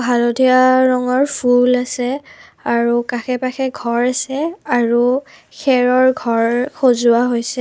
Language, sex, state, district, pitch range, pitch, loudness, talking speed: Assamese, female, Assam, Kamrup Metropolitan, 240-260 Hz, 250 Hz, -16 LUFS, 110 wpm